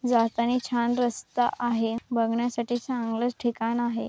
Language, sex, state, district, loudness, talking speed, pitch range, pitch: Marathi, female, Maharashtra, Nagpur, -27 LUFS, 115 wpm, 230-245 Hz, 235 Hz